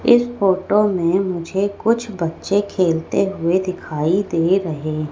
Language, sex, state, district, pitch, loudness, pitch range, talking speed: Hindi, female, Madhya Pradesh, Katni, 185 Hz, -19 LUFS, 165-200 Hz, 140 wpm